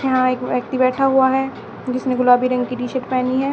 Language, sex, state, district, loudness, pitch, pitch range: Hindi, female, Haryana, Charkhi Dadri, -18 LUFS, 255 Hz, 250-265 Hz